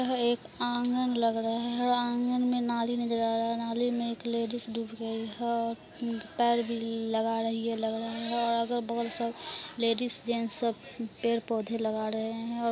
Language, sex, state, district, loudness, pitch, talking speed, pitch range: Hindi, female, Bihar, Araria, -31 LUFS, 230 Hz, 205 wpm, 230-240 Hz